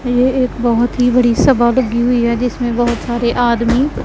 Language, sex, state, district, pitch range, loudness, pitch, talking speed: Hindi, female, Punjab, Pathankot, 235-250 Hz, -14 LUFS, 245 Hz, 190 wpm